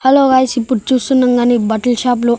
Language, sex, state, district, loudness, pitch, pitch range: Telugu, male, Andhra Pradesh, Annamaya, -13 LUFS, 245 Hz, 240-260 Hz